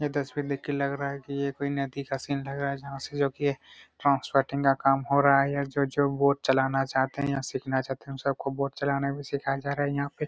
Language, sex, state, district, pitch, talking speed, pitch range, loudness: Hindi, male, Chhattisgarh, Raigarh, 140 Hz, 275 wpm, 135-140 Hz, -28 LUFS